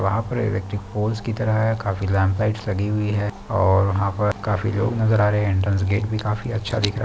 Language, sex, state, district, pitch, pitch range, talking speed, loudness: Hindi, male, Chhattisgarh, Balrampur, 105 Hz, 100-110 Hz, 240 wpm, -22 LUFS